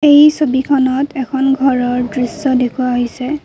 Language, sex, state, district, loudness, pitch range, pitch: Assamese, female, Assam, Kamrup Metropolitan, -14 LUFS, 250-285 Hz, 265 Hz